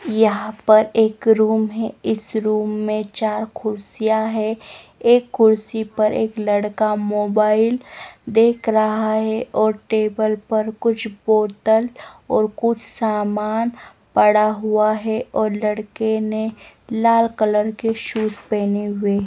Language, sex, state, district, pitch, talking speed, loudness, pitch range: Hindi, female, Himachal Pradesh, Shimla, 220 Hz, 130 wpm, -19 LUFS, 215-220 Hz